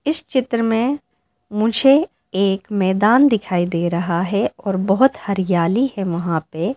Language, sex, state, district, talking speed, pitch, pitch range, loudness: Hindi, female, Arunachal Pradesh, Lower Dibang Valley, 140 wpm, 200 Hz, 180-255 Hz, -18 LUFS